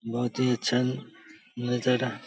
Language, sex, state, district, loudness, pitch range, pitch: Hindi, male, Bihar, Saharsa, -28 LUFS, 120-125 Hz, 125 Hz